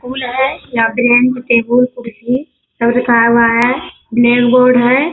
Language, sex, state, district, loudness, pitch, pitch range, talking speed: Hindi, female, Bihar, Bhagalpur, -12 LUFS, 245 Hz, 235-250 Hz, 150 wpm